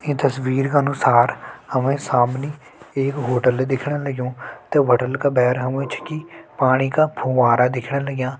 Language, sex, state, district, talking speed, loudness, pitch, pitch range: Hindi, male, Uttarakhand, Tehri Garhwal, 150 wpm, -20 LUFS, 135 Hz, 125-140 Hz